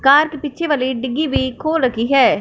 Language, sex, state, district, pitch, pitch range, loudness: Hindi, female, Punjab, Fazilka, 280 Hz, 255-305 Hz, -17 LUFS